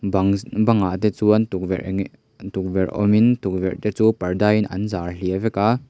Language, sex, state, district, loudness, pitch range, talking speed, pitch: Mizo, male, Mizoram, Aizawl, -20 LUFS, 95-110 Hz, 185 wpm, 100 Hz